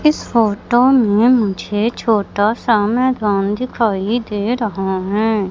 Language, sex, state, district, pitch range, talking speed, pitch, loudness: Hindi, female, Madhya Pradesh, Katni, 205-240 Hz, 120 wpm, 220 Hz, -16 LUFS